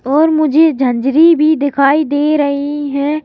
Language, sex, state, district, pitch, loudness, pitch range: Hindi, male, Madhya Pradesh, Bhopal, 290 Hz, -12 LUFS, 280-310 Hz